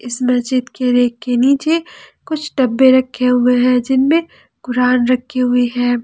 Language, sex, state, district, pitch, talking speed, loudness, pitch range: Hindi, female, Jharkhand, Ranchi, 250 Hz, 160 wpm, -15 LUFS, 245-265 Hz